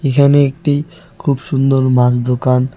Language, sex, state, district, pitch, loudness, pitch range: Bengali, male, West Bengal, Alipurduar, 135 Hz, -14 LUFS, 130-145 Hz